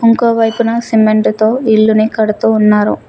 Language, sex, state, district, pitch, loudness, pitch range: Telugu, female, Telangana, Mahabubabad, 220 Hz, -11 LUFS, 215-230 Hz